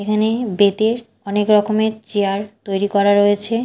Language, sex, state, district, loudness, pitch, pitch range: Bengali, female, Odisha, Malkangiri, -17 LUFS, 210 Hz, 205-220 Hz